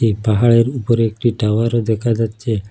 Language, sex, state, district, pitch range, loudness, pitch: Bengali, male, Assam, Hailakandi, 110-115 Hz, -16 LUFS, 115 Hz